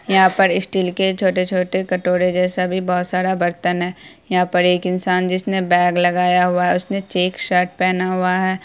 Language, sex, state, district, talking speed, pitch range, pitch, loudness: Hindi, female, Bihar, Araria, 195 wpm, 180-185 Hz, 180 Hz, -18 LUFS